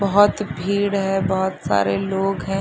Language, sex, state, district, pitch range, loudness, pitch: Hindi, female, Bihar, Madhepura, 190-200 Hz, -20 LUFS, 195 Hz